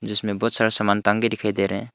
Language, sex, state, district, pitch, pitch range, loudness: Hindi, male, Arunachal Pradesh, Longding, 105 Hz, 100-110 Hz, -19 LUFS